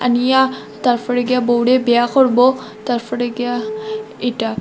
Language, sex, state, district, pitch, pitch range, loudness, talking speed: Bengali, female, Assam, Hailakandi, 245 Hz, 240-250 Hz, -17 LUFS, 115 wpm